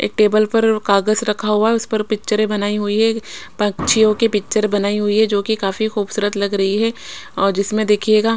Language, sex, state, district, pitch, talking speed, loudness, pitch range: Hindi, female, Odisha, Khordha, 215 Hz, 210 wpm, -17 LUFS, 205-220 Hz